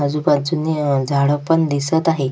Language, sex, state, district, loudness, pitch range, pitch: Marathi, female, Maharashtra, Sindhudurg, -18 LUFS, 140-160 Hz, 145 Hz